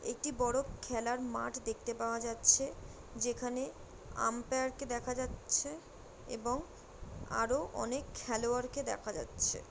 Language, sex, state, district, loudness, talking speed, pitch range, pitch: Bengali, female, West Bengal, Jhargram, -36 LUFS, 115 wpm, 235-260 Hz, 245 Hz